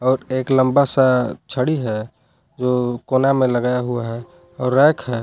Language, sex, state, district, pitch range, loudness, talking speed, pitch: Hindi, male, Jharkhand, Palamu, 125-135 Hz, -18 LUFS, 170 wpm, 130 Hz